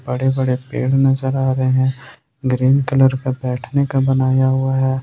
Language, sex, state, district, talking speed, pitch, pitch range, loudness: Hindi, male, Jharkhand, Ranchi, 165 wpm, 130 Hz, 130-135 Hz, -17 LUFS